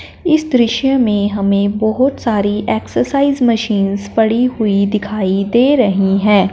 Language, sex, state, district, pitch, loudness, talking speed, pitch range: Hindi, female, Punjab, Fazilka, 215 Hz, -14 LUFS, 130 wpm, 200-245 Hz